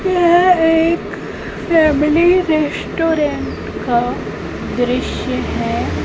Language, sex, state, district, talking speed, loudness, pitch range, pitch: Hindi, female, Madhya Pradesh, Umaria, 70 wpm, -16 LUFS, 300-345 Hz, 325 Hz